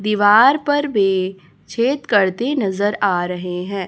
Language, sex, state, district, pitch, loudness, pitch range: Hindi, female, Chhattisgarh, Raipur, 205 Hz, -17 LUFS, 185-240 Hz